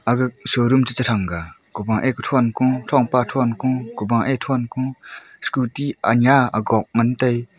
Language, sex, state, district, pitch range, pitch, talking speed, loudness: Wancho, female, Arunachal Pradesh, Longding, 115-130 Hz, 125 Hz, 150 wpm, -19 LUFS